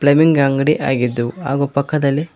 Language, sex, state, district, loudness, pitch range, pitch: Kannada, male, Karnataka, Koppal, -16 LUFS, 135-150 Hz, 140 Hz